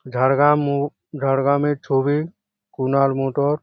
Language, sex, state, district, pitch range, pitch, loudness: Bengali, male, West Bengal, Jhargram, 135-145 Hz, 140 Hz, -20 LUFS